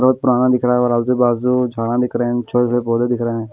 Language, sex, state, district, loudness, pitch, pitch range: Hindi, male, Bihar, West Champaran, -17 LUFS, 120 Hz, 120-125 Hz